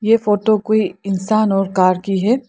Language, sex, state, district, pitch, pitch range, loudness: Hindi, female, Arunachal Pradesh, Lower Dibang Valley, 210 Hz, 195-215 Hz, -16 LUFS